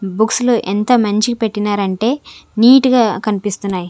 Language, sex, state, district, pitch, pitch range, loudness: Telugu, female, Andhra Pradesh, Sri Satya Sai, 215 Hz, 205-240 Hz, -14 LUFS